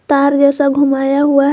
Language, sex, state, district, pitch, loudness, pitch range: Hindi, female, Jharkhand, Garhwa, 280 Hz, -12 LUFS, 280-285 Hz